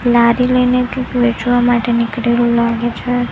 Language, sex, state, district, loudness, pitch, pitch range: Gujarati, female, Gujarat, Gandhinagar, -14 LUFS, 240 Hz, 235-250 Hz